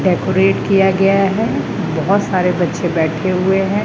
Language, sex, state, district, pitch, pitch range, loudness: Hindi, male, Rajasthan, Jaipur, 190 Hz, 180-195 Hz, -15 LUFS